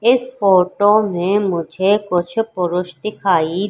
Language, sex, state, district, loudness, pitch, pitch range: Hindi, female, Madhya Pradesh, Katni, -17 LUFS, 195 Hz, 180-210 Hz